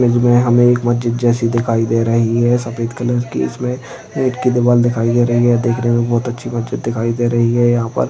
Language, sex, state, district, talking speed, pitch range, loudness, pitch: Hindi, male, Bihar, Purnia, 250 wpm, 115-120 Hz, -15 LUFS, 120 Hz